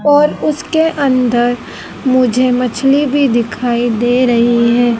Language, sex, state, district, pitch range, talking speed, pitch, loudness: Hindi, female, Madhya Pradesh, Dhar, 240-280 Hz, 120 wpm, 250 Hz, -13 LUFS